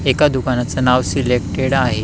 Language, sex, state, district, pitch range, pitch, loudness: Marathi, male, Maharashtra, Pune, 125-135 Hz, 130 Hz, -16 LUFS